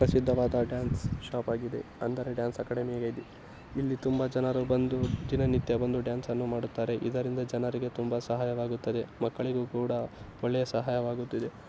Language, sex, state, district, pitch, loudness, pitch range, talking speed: Kannada, male, Karnataka, Shimoga, 120 Hz, -31 LUFS, 120-125 Hz, 130 wpm